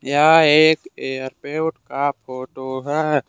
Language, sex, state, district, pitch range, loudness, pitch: Hindi, male, Jharkhand, Deoghar, 130-155 Hz, -18 LUFS, 145 Hz